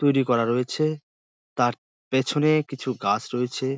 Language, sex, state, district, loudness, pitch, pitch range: Bengali, male, West Bengal, Dakshin Dinajpur, -24 LUFS, 130 Hz, 120-140 Hz